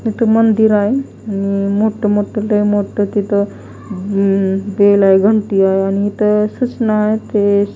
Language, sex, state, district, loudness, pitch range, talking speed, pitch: Marathi, female, Maharashtra, Mumbai Suburban, -14 LUFS, 200-215 Hz, 140 wpm, 205 Hz